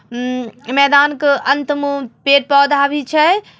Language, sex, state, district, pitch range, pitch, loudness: Magahi, female, Bihar, Samastipur, 270-290 Hz, 280 Hz, -14 LUFS